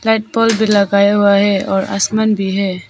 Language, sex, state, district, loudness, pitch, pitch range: Hindi, female, Arunachal Pradesh, Papum Pare, -14 LUFS, 200 Hz, 195-220 Hz